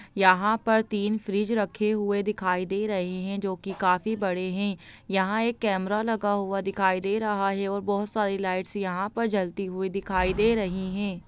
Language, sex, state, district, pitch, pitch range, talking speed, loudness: Hindi, female, Chhattisgarh, Bastar, 200 Hz, 190-210 Hz, 190 wpm, -27 LUFS